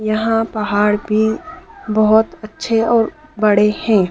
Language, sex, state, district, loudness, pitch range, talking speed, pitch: Hindi, female, Madhya Pradesh, Dhar, -16 LUFS, 210-225 Hz, 115 wpm, 215 Hz